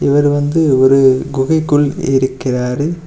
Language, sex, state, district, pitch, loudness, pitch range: Tamil, male, Tamil Nadu, Kanyakumari, 145 Hz, -13 LUFS, 130-150 Hz